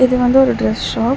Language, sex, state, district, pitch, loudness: Tamil, female, Tamil Nadu, Chennai, 245 Hz, -14 LUFS